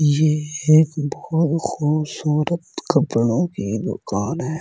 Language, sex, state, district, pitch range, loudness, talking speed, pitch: Hindi, male, Delhi, New Delhi, 150-160 Hz, -20 LUFS, 105 wpm, 155 Hz